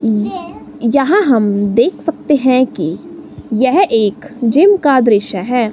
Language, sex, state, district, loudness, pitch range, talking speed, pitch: Hindi, female, Himachal Pradesh, Shimla, -13 LUFS, 225-290 Hz, 135 wpm, 255 Hz